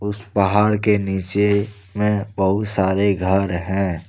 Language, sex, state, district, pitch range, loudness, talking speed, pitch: Hindi, male, Jharkhand, Deoghar, 95-105 Hz, -19 LUFS, 115 wpm, 100 Hz